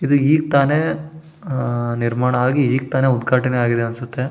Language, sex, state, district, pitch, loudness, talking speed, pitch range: Kannada, male, Karnataka, Shimoga, 130 Hz, -18 LUFS, 155 wpm, 120-145 Hz